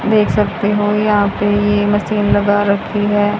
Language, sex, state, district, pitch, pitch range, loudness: Hindi, female, Haryana, Jhajjar, 205 Hz, 205-210 Hz, -15 LUFS